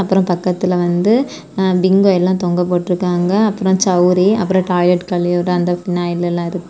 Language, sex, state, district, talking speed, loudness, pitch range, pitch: Tamil, female, Tamil Nadu, Kanyakumari, 150 wpm, -15 LUFS, 175-190 Hz, 180 Hz